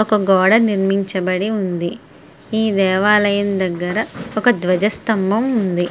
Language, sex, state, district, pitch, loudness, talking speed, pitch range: Telugu, female, Andhra Pradesh, Srikakulam, 200 Hz, -17 LUFS, 110 wpm, 185-215 Hz